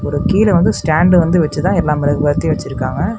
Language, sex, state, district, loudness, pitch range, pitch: Tamil, male, Tamil Nadu, Namakkal, -14 LUFS, 145-175 Hz, 155 Hz